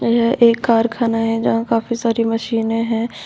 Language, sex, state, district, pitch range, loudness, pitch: Hindi, female, Uttar Pradesh, Shamli, 225-235 Hz, -17 LUFS, 230 Hz